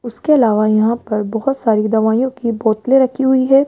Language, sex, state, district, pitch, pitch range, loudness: Hindi, female, Rajasthan, Jaipur, 235 Hz, 220-265 Hz, -15 LUFS